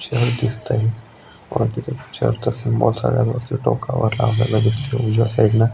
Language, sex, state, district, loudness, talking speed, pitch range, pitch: Marathi, male, Maharashtra, Aurangabad, -20 LUFS, 125 wpm, 110-125 Hz, 115 Hz